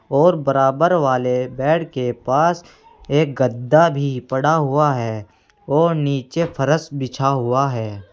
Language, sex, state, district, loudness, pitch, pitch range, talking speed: Hindi, male, Uttar Pradesh, Saharanpur, -18 LUFS, 135 Hz, 125-160 Hz, 135 wpm